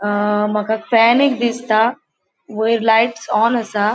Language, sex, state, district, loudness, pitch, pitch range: Konkani, female, Goa, North and South Goa, -16 LUFS, 225 Hz, 215-235 Hz